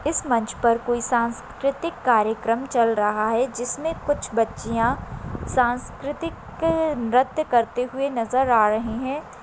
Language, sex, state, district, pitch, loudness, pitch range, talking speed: Hindi, female, Maharashtra, Solapur, 245 Hz, -23 LUFS, 230-275 Hz, 125 wpm